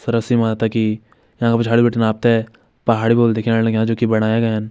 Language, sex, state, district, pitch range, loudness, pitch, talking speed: Hindi, male, Uttarakhand, Uttarkashi, 110-115 Hz, -17 LUFS, 115 Hz, 180 wpm